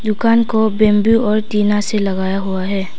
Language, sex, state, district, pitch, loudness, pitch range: Hindi, female, Arunachal Pradesh, Papum Pare, 210 Hz, -15 LUFS, 195-220 Hz